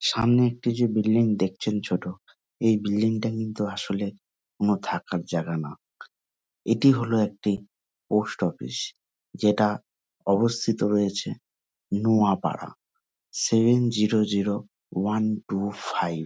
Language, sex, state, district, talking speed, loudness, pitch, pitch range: Bengali, male, West Bengal, North 24 Parganas, 115 wpm, -25 LUFS, 105 Hz, 95-110 Hz